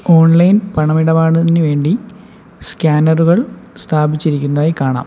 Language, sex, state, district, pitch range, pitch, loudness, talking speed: Malayalam, male, Kerala, Kollam, 155-175 Hz, 160 Hz, -13 LUFS, 85 wpm